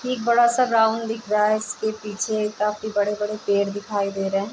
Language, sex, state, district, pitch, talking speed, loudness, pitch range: Hindi, female, Bihar, Gopalganj, 210 Hz, 280 wpm, -22 LUFS, 205-220 Hz